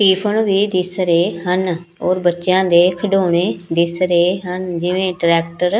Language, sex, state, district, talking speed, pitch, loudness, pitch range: Punjabi, female, Punjab, Pathankot, 155 wpm, 180 Hz, -16 LUFS, 175-185 Hz